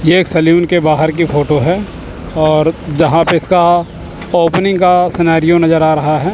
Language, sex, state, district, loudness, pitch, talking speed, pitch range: Hindi, male, Chandigarh, Chandigarh, -11 LUFS, 165 Hz, 180 wpm, 155-175 Hz